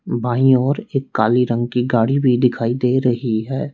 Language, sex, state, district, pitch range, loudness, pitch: Hindi, male, Uttar Pradesh, Lalitpur, 120-130 Hz, -17 LUFS, 125 Hz